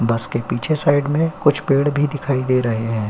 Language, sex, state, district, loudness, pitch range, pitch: Hindi, male, Uttar Pradesh, Jyotiba Phule Nagar, -19 LUFS, 115-145 Hz, 140 Hz